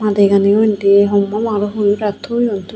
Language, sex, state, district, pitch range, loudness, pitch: Chakma, female, Tripura, Unakoti, 200-215 Hz, -14 LUFS, 205 Hz